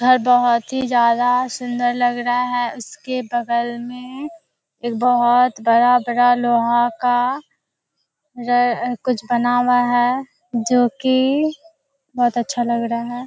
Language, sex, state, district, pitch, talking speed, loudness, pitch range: Hindi, female, Bihar, Kishanganj, 245 Hz, 125 wpm, -18 LUFS, 240-255 Hz